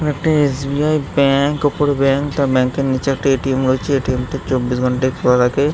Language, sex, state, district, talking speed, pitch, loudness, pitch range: Bengali, male, West Bengal, Jhargram, 210 wpm, 135 Hz, -17 LUFS, 130-145 Hz